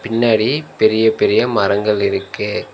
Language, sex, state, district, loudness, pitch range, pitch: Tamil, male, Tamil Nadu, Nilgiris, -16 LUFS, 105-115 Hz, 110 Hz